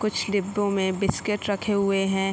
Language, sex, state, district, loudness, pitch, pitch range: Hindi, female, Bihar, Araria, -25 LUFS, 200 Hz, 195-205 Hz